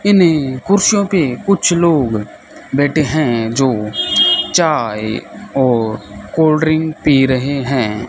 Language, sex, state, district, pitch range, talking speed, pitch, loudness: Hindi, male, Rajasthan, Bikaner, 115-160 Hz, 110 wpm, 140 Hz, -14 LUFS